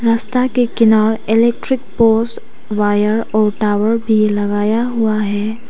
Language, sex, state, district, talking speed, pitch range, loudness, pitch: Hindi, female, Arunachal Pradesh, Papum Pare, 125 wpm, 210-230 Hz, -15 LUFS, 220 Hz